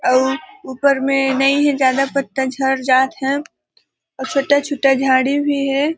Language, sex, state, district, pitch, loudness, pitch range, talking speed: Hindi, female, Chhattisgarh, Balrampur, 275 Hz, -17 LUFS, 265-280 Hz, 160 wpm